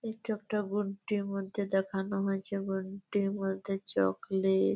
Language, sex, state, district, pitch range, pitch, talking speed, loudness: Bengali, female, West Bengal, Malda, 190-205 Hz, 195 Hz, 175 wpm, -33 LUFS